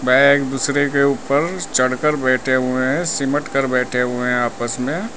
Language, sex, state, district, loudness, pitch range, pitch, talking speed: Hindi, male, Uttar Pradesh, Lalitpur, -18 LUFS, 125-140 Hz, 135 Hz, 175 wpm